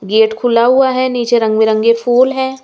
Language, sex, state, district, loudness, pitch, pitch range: Hindi, female, Bihar, West Champaran, -12 LUFS, 240 Hz, 220-255 Hz